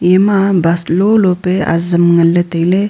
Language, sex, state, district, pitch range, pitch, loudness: Wancho, female, Arunachal Pradesh, Longding, 170-190 Hz, 180 Hz, -12 LUFS